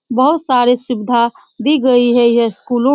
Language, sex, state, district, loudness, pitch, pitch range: Hindi, female, Bihar, Saran, -13 LUFS, 245 Hz, 235-260 Hz